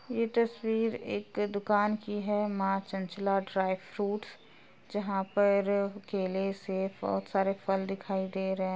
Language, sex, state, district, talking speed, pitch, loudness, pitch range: Hindi, female, Uttar Pradesh, Jalaun, 145 wpm, 195 Hz, -32 LUFS, 190-210 Hz